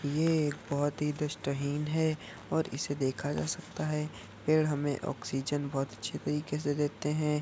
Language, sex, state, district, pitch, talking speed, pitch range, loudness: Hindi, male, Bihar, Saharsa, 145 Hz, 170 wpm, 140-150 Hz, -33 LUFS